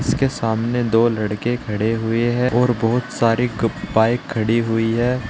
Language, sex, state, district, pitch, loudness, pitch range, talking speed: Hindi, male, Uttar Pradesh, Saharanpur, 115 Hz, -19 LUFS, 115-125 Hz, 170 wpm